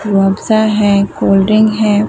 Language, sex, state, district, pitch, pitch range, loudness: Hindi, female, Chhattisgarh, Bilaspur, 210 Hz, 200-215 Hz, -11 LUFS